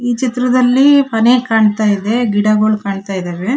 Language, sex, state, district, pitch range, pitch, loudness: Kannada, female, Karnataka, Shimoga, 205-250 Hz, 225 Hz, -13 LUFS